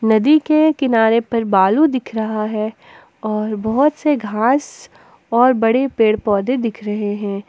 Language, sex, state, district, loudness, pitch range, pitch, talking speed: Hindi, female, Jharkhand, Ranchi, -16 LUFS, 215-270 Hz, 225 Hz, 150 wpm